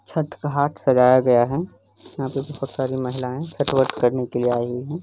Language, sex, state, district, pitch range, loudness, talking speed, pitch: Hindi, male, Bihar, Lakhisarai, 125-145 Hz, -21 LUFS, 225 wpm, 130 Hz